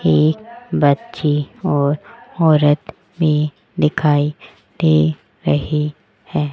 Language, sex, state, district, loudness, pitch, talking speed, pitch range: Hindi, female, Rajasthan, Jaipur, -18 LUFS, 150 Hz, 85 wpm, 140-165 Hz